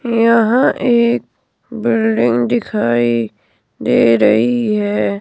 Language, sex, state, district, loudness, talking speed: Hindi, female, Himachal Pradesh, Shimla, -14 LUFS, 80 wpm